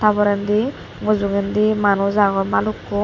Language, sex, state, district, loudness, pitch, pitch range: Chakma, female, Tripura, Dhalai, -19 LUFS, 205 Hz, 200-210 Hz